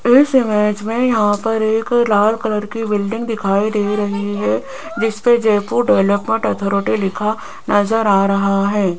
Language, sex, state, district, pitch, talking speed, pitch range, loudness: Hindi, female, Rajasthan, Jaipur, 210 Hz, 160 wpm, 205-225 Hz, -16 LUFS